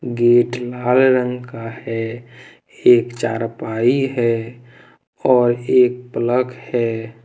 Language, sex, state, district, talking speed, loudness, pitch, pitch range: Hindi, male, Jharkhand, Deoghar, 100 wpm, -18 LUFS, 120 Hz, 115-125 Hz